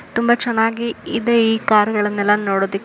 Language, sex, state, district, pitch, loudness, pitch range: Kannada, female, Karnataka, Shimoga, 225 Hz, -17 LUFS, 205-235 Hz